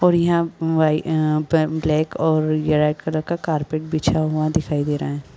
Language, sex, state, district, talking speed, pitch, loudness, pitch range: Hindi, female, Uttar Pradesh, Varanasi, 190 wpm, 155 Hz, -20 LUFS, 155-160 Hz